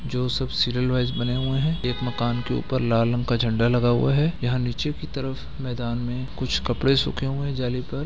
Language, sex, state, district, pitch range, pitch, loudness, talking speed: Hindi, male, Bihar, Gaya, 120-135 Hz, 125 Hz, -24 LUFS, 230 wpm